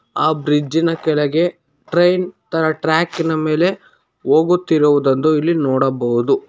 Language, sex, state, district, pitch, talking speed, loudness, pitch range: Kannada, male, Karnataka, Bangalore, 160 Hz, 110 wpm, -16 LUFS, 150-170 Hz